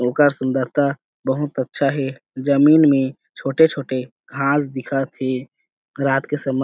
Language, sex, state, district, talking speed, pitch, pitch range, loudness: Chhattisgarhi, male, Chhattisgarh, Jashpur, 125 wpm, 135 Hz, 130-145 Hz, -20 LUFS